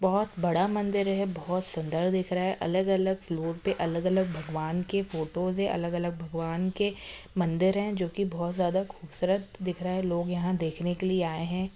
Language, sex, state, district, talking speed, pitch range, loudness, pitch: Hindi, female, Maharashtra, Pune, 185 wpm, 170-190 Hz, -29 LUFS, 180 Hz